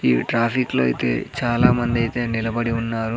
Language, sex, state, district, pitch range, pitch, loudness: Telugu, male, Andhra Pradesh, Sri Satya Sai, 110-120 Hz, 115 Hz, -21 LUFS